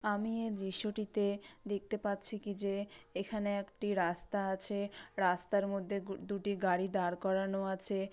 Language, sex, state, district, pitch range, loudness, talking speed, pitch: Bengali, female, West Bengal, Dakshin Dinajpur, 195-205 Hz, -36 LUFS, 155 wpm, 200 Hz